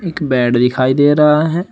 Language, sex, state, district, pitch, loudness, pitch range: Hindi, male, Uttar Pradesh, Shamli, 145 Hz, -13 LUFS, 130-155 Hz